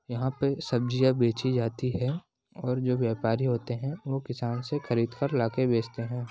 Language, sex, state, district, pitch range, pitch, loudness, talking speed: Hindi, male, Chhattisgarh, Sarguja, 120-130 Hz, 125 Hz, -29 LUFS, 180 wpm